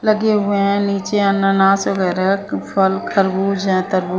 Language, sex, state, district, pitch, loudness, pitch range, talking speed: Hindi, female, Chandigarh, Chandigarh, 195 Hz, -17 LUFS, 190-200 Hz, 145 wpm